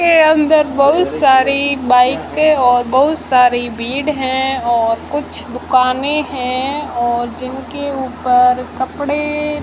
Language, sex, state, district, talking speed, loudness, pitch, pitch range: Hindi, female, Rajasthan, Jaisalmer, 110 wpm, -14 LUFS, 265 Hz, 250-295 Hz